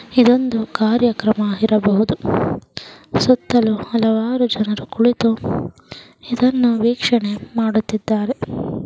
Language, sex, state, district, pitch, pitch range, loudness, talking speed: Kannada, female, Karnataka, Chamarajanagar, 230 Hz, 215-245 Hz, -18 LUFS, 70 wpm